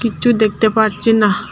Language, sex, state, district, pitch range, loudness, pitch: Bengali, female, Tripura, Dhalai, 210-230 Hz, -14 LUFS, 220 Hz